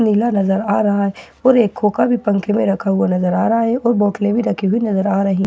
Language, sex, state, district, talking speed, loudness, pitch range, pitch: Hindi, female, Bihar, Katihar, 275 wpm, -16 LUFS, 195-230 Hz, 205 Hz